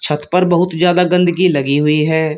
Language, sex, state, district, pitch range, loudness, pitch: Hindi, male, Uttar Pradesh, Shamli, 150-180 Hz, -13 LUFS, 175 Hz